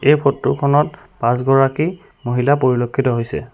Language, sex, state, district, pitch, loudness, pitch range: Assamese, male, Assam, Sonitpur, 135 Hz, -17 LUFS, 125-145 Hz